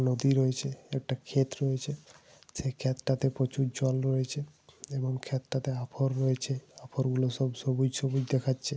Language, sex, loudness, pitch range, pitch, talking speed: Bengali, male, -31 LUFS, 130-135 Hz, 130 Hz, 180 wpm